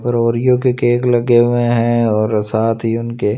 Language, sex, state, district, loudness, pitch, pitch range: Hindi, male, Delhi, New Delhi, -15 LUFS, 120 Hz, 115-120 Hz